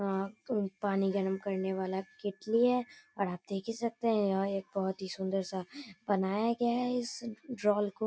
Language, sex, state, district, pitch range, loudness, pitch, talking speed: Hindi, male, Bihar, Darbhanga, 195-230 Hz, -33 LUFS, 200 Hz, 185 wpm